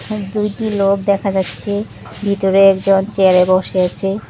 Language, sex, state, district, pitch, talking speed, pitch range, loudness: Bengali, female, West Bengal, Cooch Behar, 195 Hz, 140 wpm, 190-205 Hz, -15 LUFS